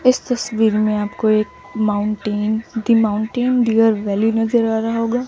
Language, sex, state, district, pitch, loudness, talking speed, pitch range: Hindi, female, Chandigarh, Chandigarh, 220 Hz, -18 LUFS, 160 wpm, 215-230 Hz